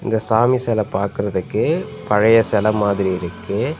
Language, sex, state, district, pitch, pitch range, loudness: Tamil, male, Tamil Nadu, Nilgiris, 110 Hz, 100-115 Hz, -18 LUFS